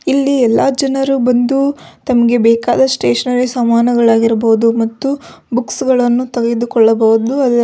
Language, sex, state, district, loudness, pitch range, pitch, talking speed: Kannada, female, Karnataka, Belgaum, -13 LUFS, 230-265 Hz, 245 Hz, 120 wpm